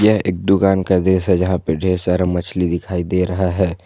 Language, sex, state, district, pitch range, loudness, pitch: Hindi, male, Jharkhand, Garhwa, 90-95 Hz, -17 LUFS, 90 Hz